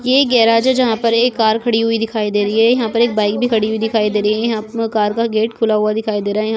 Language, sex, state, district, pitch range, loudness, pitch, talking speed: Hindi, female, Goa, North and South Goa, 215-230 Hz, -15 LUFS, 225 Hz, 330 wpm